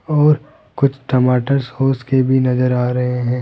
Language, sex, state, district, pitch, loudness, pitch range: Hindi, male, Rajasthan, Jaipur, 130 Hz, -16 LUFS, 125-140 Hz